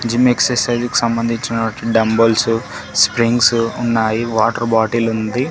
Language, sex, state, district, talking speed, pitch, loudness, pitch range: Telugu, male, Telangana, Komaram Bheem, 110 wpm, 115 Hz, -16 LUFS, 115-120 Hz